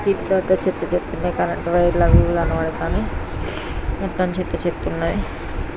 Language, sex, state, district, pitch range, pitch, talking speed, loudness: Telugu, female, Andhra Pradesh, Krishna, 175-190 Hz, 185 Hz, 145 wpm, -21 LUFS